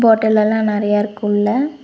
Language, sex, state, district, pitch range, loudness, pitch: Tamil, female, Tamil Nadu, Nilgiris, 210-225 Hz, -16 LUFS, 215 Hz